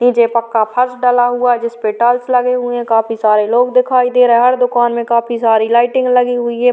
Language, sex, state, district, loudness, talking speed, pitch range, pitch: Hindi, female, Uttar Pradesh, Varanasi, -13 LUFS, 240 wpm, 235-250 Hz, 240 Hz